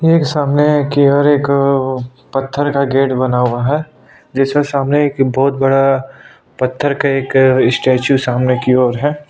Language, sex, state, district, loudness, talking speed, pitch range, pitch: Hindi, male, Chhattisgarh, Sukma, -14 LUFS, 160 wpm, 130-145 Hz, 135 Hz